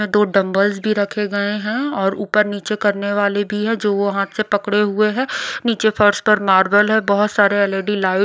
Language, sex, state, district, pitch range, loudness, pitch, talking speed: Hindi, female, Odisha, Khordha, 200-210 Hz, -17 LUFS, 205 Hz, 225 wpm